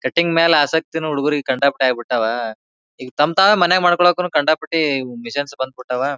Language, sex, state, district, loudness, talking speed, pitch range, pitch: Kannada, male, Karnataka, Bijapur, -17 LUFS, 155 wpm, 130-165 Hz, 145 Hz